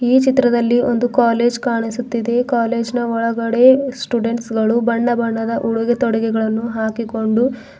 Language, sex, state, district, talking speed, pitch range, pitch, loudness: Kannada, female, Karnataka, Bidar, 115 wpm, 230-245 Hz, 235 Hz, -17 LUFS